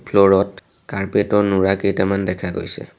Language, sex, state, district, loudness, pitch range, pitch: Assamese, male, Assam, Sonitpur, -18 LUFS, 95-100 Hz, 100 Hz